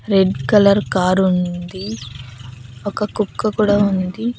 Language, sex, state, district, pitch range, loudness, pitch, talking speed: Telugu, female, Andhra Pradesh, Annamaya, 175-205 Hz, -17 LUFS, 190 Hz, 95 wpm